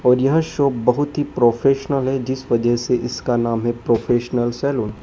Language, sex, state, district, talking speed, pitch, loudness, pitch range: Hindi, male, Madhya Pradesh, Dhar, 190 wpm, 125 Hz, -19 LUFS, 120-135 Hz